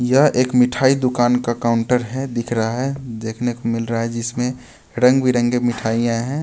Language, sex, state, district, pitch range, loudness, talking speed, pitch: Hindi, male, Bihar, West Champaran, 115-125 Hz, -19 LUFS, 175 wpm, 120 Hz